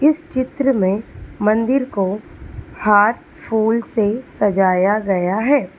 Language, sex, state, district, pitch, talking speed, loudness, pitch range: Hindi, female, Telangana, Hyderabad, 215 Hz, 115 wpm, -18 LUFS, 200-255 Hz